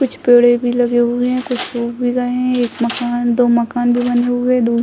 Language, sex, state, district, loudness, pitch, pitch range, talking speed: Hindi, female, Bihar, Sitamarhi, -15 LUFS, 245 Hz, 240-250 Hz, 260 wpm